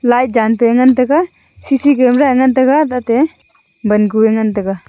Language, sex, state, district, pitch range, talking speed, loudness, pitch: Wancho, female, Arunachal Pradesh, Longding, 220-270 Hz, 220 wpm, -12 LUFS, 250 Hz